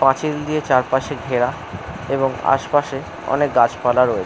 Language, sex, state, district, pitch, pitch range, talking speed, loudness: Bengali, male, West Bengal, North 24 Parganas, 135 Hz, 125-140 Hz, 125 wpm, -19 LUFS